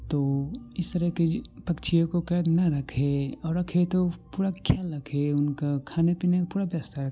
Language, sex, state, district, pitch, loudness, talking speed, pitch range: Maithili, male, Bihar, Supaul, 165 Hz, -27 LUFS, 185 wpm, 145-175 Hz